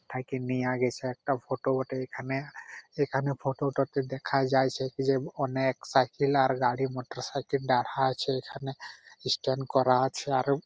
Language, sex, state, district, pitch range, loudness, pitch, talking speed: Bengali, male, West Bengal, Purulia, 130-135 Hz, -29 LUFS, 130 Hz, 170 wpm